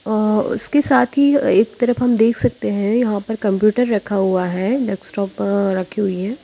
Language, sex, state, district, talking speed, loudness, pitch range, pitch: Hindi, female, Uttar Pradesh, Lalitpur, 205 wpm, -17 LUFS, 200-245 Hz, 215 Hz